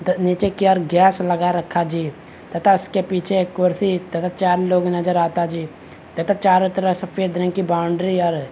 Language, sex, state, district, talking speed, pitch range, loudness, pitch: Hindi, male, Bihar, Begusarai, 190 wpm, 170-185 Hz, -19 LUFS, 180 Hz